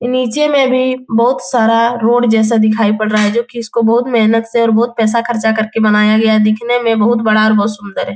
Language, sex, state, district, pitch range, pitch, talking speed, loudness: Hindi, female, Bihar, Jahanabad, 215-240 Hz, 230 Hz, 245 wpm, -12 LUFS